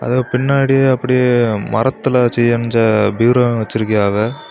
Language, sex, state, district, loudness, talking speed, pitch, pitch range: Tamil, male, Tamil Nadu, Kanyakumari, -14 LUFS, 95 wpm, 120 Hz, 110-125 Hz